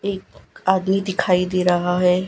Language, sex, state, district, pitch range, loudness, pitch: Hindi, female, Gujarat, Gandhinagar, 180-190 Hz, -20 LUFS, 185 Hz